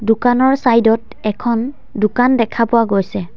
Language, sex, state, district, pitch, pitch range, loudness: Assamese, female, Assam, Sonitpur, 230 Hz, 215-245 Hz, -15 LUFS